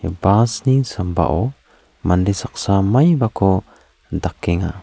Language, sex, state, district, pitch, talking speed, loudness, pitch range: Garo, male, Meghalaya, South Garo Hills, 100 Hz, 85 wpm, -18 LUFS, 90-120 Hz